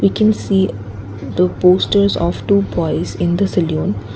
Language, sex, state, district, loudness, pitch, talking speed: English, female, Assam, Kamrup Metropolitan, -16 LUFS, 180 Hz, 160 wpm